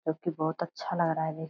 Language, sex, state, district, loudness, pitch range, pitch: Hindi, female, Bihar, Purnia, -31 LUFS, 160-170 Hz, 160 Hz